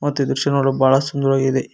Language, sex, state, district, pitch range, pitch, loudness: Kannada, male, Karnataka, Koppal, 135-140 Hz, 135 Hz, -18 LUFS